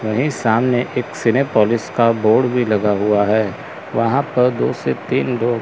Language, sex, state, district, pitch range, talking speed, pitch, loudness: Hindi, male, Chandigarh, Chandigarh, 110-125 Hz, 170 wpm, 115 Hz, -17 LUFS